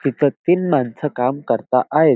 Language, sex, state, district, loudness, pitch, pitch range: Marathi, male, Maharashtra, Dhule, -18 LUFS, 140 Hz, 125-155 Hz